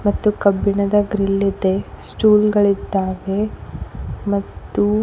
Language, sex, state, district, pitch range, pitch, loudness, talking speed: Kannada, female, Karnataka, Koppal, 195-210 Hz, 200 Hz, -18 LUFS, 95 wpm